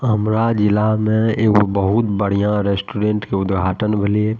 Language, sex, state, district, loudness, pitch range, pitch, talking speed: Maithili, male, Bihar, Madhepura, -17 LUFS, 100-110 Hz, 105 Hz, 150 wpm